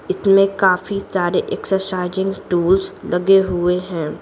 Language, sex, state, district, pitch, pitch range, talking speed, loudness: Hindi, female, Bihar, Patna, 190 Hz, 180-195 Hz, 115 wpm, -17 LUFS